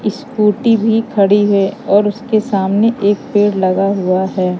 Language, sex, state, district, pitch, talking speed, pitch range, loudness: Hindi, female, Madhya Pradesh, Katni, 205 Hz, 155 wpm, 195-220 Hz, -14 LUFS